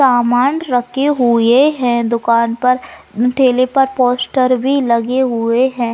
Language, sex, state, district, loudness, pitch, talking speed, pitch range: Hindi, female, Maharashtra, Nagpur, -14 LUFS, 250 Hz, 130 wpm, 235-265 Hz